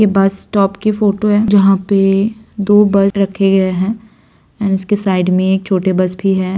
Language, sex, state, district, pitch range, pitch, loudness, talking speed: Hindi, female, Bihar, Saran, 190-205 Hz, 195 Hz, -13 LUFS, 200 wpm